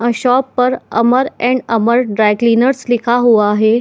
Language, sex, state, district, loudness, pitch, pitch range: Hindi, female, Chhattisgarh, Bilaspur, -13 LUFS, 240 Hz, 230-250 Hz